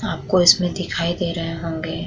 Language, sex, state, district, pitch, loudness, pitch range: Hindi, female, Uttar Pradesh, Muzaffarnagar, 170 Hz, -19 LUFS, 165-180 Hz